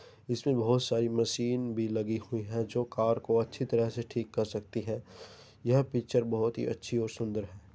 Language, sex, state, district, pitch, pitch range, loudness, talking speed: Hindi, male, Uttar Pradesh, Jyotiba Phule Nagar, 115 Hz, 110-120 Hz, -32 LUFS, 210 wpm